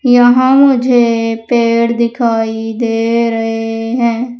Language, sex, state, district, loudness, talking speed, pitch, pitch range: Hindi, female, Madhya Pradesh, Umaria, -12 LUFS, 95 wpm, 235 Hz, 225-245 Hz